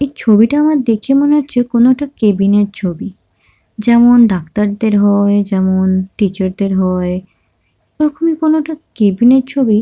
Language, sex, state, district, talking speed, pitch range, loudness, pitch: Bengali, female, West Bengal, Kolkata, 145 wpm, 195-270 Hz, -12 LUFS, 215 Hz